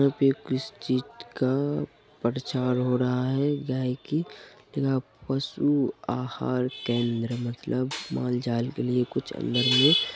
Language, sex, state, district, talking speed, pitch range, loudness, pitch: Hindi, male, Bihar, Purnia, 150 wpm, 125-135 Hz, -27 LUFS, 130 Hz